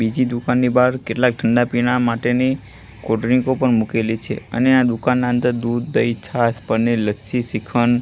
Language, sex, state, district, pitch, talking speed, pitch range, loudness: Gujarati, male, Gujarat, Gandhinagar, 120 Hz, 155 wpm, 115-125 Hz, -18 LUFS